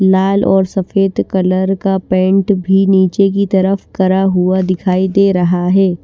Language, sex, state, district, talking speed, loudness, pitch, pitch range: Hindi, female, Bihar, Patna, 160 wpm, -13 LUFS, 190 Hz, 185-195 Hz